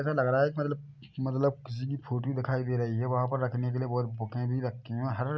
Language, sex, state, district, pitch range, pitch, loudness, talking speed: Hindi, male, Chhattisgarh, Bilaspur, 125-135 Hz, 130 Hz, -31 LUFS, 290 wpm